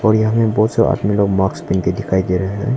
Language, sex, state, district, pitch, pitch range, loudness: Hindi, male, Arunachal Pradesh, Longding, 100 Hz, 95-110 Hz, -16 LUFS